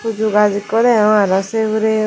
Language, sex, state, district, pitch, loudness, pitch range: Chakma, female, Tripura, Dhalai, 215 Hz, -15 LUFS, 210-220 Hz